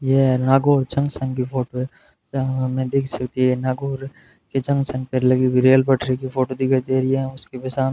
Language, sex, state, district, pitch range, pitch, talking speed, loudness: Hindi, male, Rajasthan, Bikaner, 130-135 Hz, 130 Hz, 220 wpm, -20 LUFS